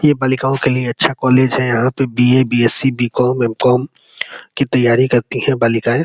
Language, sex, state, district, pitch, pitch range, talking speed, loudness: Hindi, male, Uttar Pradesh, Gorakhpur, 125 Hz, 120-130 Hz, 200 wpm, -15 LUFS